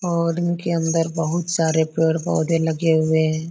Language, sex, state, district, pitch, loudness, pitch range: Hindi, male, Jharkhand, Sahebganj, 165 Hz, -20 LUFS, 160-170 Hz